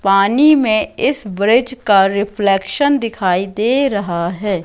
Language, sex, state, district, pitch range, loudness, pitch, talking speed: Hindi, female, Madhya Pradesh, Katni, 195-255 Hz, -15 LUFS, 205 Hz, 130 wpm